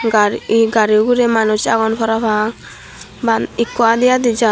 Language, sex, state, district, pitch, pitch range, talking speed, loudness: Chakma, female, Tripura, Dhalai, 225 Hz, 220-235 Hz, 160 wpm, -15 LUFS